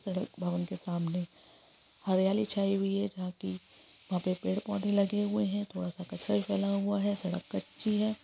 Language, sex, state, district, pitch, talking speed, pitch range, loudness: Hindi, female, Jharkhand, Sahebganj, 190 Hz, 190 wpm, 180-205 Hz, -32 LUFS